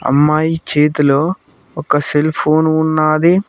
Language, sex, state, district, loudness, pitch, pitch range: Telugu, male, Telangana, Mahabubabad, -14 LUFS, 155 Hz, 150-160 Hz